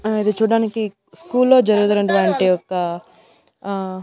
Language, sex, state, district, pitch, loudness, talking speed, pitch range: Telugu, female, Andhra Pradesh, Annamaya, 205 Hz, -18 LUFS, 105 wpm, 185-220 Hz